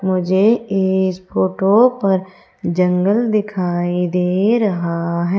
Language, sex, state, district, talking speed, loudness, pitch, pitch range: Hindi, female, Madhya Pradesh, Umaria, 100 wpm, -17 LUFS, 185 Hz, 180-200 Hz